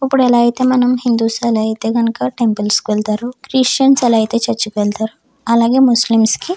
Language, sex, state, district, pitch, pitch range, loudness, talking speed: Telugu, female, Andhra Pradesh, Chittoor, 235 Hz, 220-255 Hz, -14 LUFS, 175 wpm